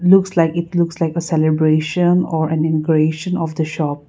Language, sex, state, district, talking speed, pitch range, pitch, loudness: English, female, Nagaland, Kohima, 190 wpm, 155-170 Hz, 160 Hz, -17 LUFS